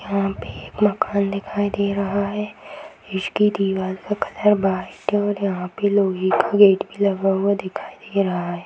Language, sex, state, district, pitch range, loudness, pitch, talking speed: Hindi, female, Bihar, Purnia, 190-205 Hz, -21 LUFS, 200 Hz, 160 wpm